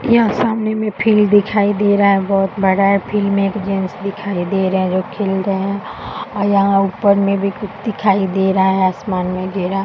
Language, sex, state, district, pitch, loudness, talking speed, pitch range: Hindi, female, Uttar Pradesh, Gorakhpur, 200 Hz, -16 LUFS, 220 wpm, 190-205 Hz